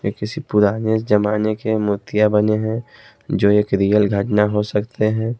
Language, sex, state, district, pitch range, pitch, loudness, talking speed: Hindi, male, Haryana, Jhajjar, 105-110 Hz, 105 Hz, -18 LUFS, 165 wpm